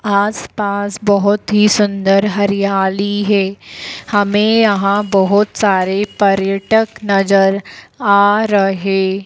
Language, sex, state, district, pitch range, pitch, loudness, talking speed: Hindi, female, Madhya Pradesh, Dhar, 195-205 Hz, 200 Hz, -14 LUFS, 95 wpm